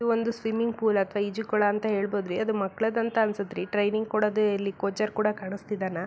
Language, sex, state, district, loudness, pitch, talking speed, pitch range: Kannada, female, Karnataka, Belgaum, -27 LUFS, 210 Hz, 200 wpm, 200-220 Hz